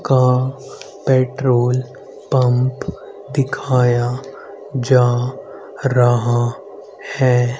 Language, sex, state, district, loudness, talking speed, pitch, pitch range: Hindi, male, Haryana, Rohtak, -17 LUFS, 55 wpm, 125 Hz, 125-130 Hz